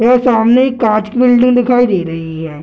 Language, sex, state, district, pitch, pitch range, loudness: Hindi, male, Bihar, Gaya, 235 Hz, 190-250 Hz, -11 LUFS